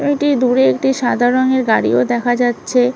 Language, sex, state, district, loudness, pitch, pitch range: Bengali, female, West Bengal, Malda, -15 LUFS, 245 Hz, 240-260 Hz